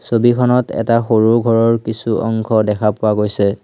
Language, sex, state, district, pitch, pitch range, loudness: Assamese, male, Assam, Hailakandi, 115 Hz, 105-115 Hz, -15 LUFS